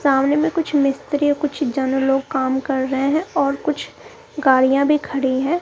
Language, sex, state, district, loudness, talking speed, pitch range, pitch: Hindi, female, Bihar, Kaimur, -19 LUFS, 180 wpm, 270-300 Hz, 280 Hz